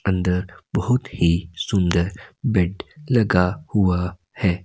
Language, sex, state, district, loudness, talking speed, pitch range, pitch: Hindi, male, Himachal Pradesh, Shimla, -22 LUFS, 105 wpm, 90-100 Hz, 90 Hz